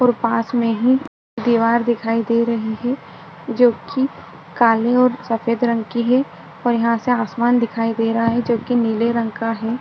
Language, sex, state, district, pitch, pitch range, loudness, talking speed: Hindi, female, Maharashtra, Chandrapur, 235 Hz, 230-245 Hz, -18 LUFS, 190 wpm